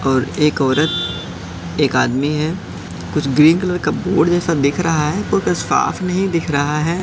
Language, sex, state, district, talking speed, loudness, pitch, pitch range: Hindi, male, Madhya Pradesh, Katni, 170 wpm, -17 LUFS, 150 Hz, 140-170 Hz